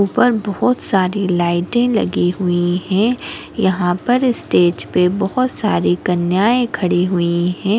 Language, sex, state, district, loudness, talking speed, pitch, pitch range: Hindi, female, Goa, North and South Goa, -16 LUFS, 130 wpm, 190 Hz, 175-230 Hz